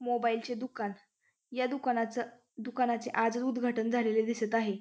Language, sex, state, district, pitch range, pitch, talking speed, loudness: Marathi, female, Maharashtra, Pune, 225-245 Hz, 235 Hz, 135 wpm, -32 LUFS